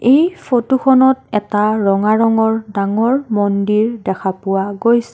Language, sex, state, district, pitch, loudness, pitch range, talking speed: Assamese, female, Assam, Kamrup Metropolitan, 215 Hz, -15 LUFS, 200-240 Hz, 130 wpm